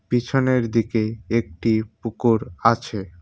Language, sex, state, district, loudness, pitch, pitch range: Bengali, male, West Bengal, Cooch Behar, -22 LUFS, 115 Hz, 110-120 Hz